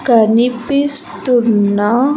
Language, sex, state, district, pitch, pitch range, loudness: Telugu, female, Andhra Pradesh, Sri Satya Sai, 245 Hz, 220-280 Hz, -13 LUFS